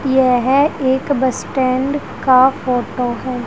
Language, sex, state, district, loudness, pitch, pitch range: Hindi, female, Haryana, Rohtak, -16 LUFS, 260 Hz, 250-270 Hz